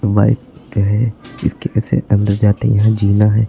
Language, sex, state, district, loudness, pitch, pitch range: Hindi, male, Uttar Pradesh, Lucknow, -15 LUFS, 105 Hz, 100-115 Hz